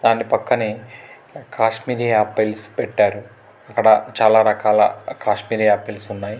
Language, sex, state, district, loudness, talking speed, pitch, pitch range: Telugu, male, Telangana, Hyderabad, -18 LUFS, 105 wpm, 110 Hz, 105-110 Hz